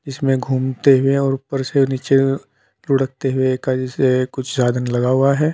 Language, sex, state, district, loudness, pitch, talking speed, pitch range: Hindi, male, Uttar Pradesh, Saharanpur, -18 LUFS, 135 Hz, 160 wpm, 130-135 Hz